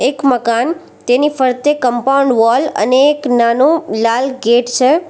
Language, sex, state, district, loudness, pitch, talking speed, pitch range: Gujarati, female, Gujarat, Valsad, -13 LUFS, 260 Hz, 140 wpm, 240-285 Hz